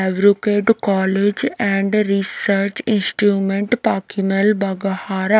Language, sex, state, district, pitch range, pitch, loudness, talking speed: Hindi, female, Odisha, Nuapada, 195-210 Hz, 200 Hz, -18 LUFS, 80 wpm